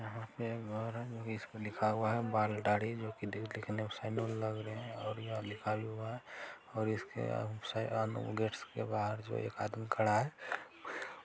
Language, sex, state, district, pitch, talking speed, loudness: Hindi, male, Bihar, Araria, 110 Hz, 160 wpm, -38 LUFS